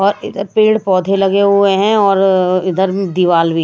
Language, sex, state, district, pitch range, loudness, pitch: Hindi, female, Punjab, Kapurthala, 185-200 Hz, -13 LUFS, 195 Hz